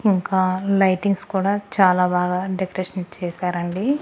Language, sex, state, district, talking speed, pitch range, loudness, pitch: Telugu, female, Andhra Pradesh, Annamaya, 105 wpm, 180-195 Hz, -21 LUFS, 185 Hz